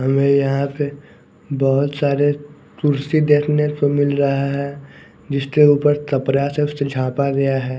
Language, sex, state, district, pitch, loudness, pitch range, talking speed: Hindi, male, Bihar, West Champaran, 140 Hz, -18 LUFS, 140-145 Hz, 145 wpm